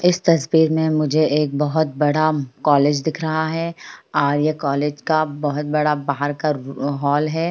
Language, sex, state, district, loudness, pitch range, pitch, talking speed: Hindi, female, Bihar, Jahanabad, -19 LUFS, 145-160 Hz, 150 Hz, 170 wpm